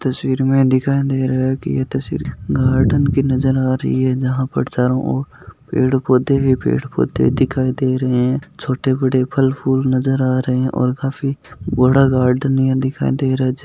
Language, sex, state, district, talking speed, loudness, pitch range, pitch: Marwari, male, Rajasthan, Nagaur, 200 wpm, -17 LUFS, 130-135 Hz, 130 Hz